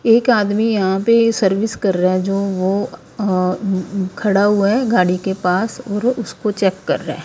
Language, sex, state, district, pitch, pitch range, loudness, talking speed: Hindi, female, Punjab, Kapurthala, 200 Hz, 190-225 Hz, -17 LUFS, 205 wpm